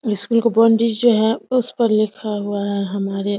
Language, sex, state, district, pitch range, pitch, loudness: Hindi, female, Bihar, Samastipur, 205-230 Hz, 215 Hz, -18 LUFS